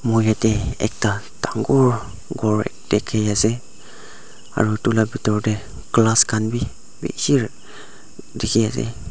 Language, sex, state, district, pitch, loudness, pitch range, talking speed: Nagamese, male, Nagaland, Dimapur, 110 Hz, -20 LUFS, 105-115 Hz, 120 wpm